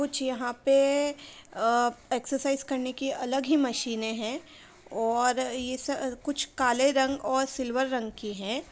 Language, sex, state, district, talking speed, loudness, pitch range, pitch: Hindi, female, Uttar Pradesh, Varanasi, 150 wpm, -28 LUFS, 245-275 Hz, 260 Hz